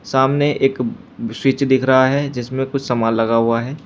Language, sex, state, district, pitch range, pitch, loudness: Hindi, male, Uttar Pradesh, Shamli, 115-135 Hz, 130 Hz, -17 LUFS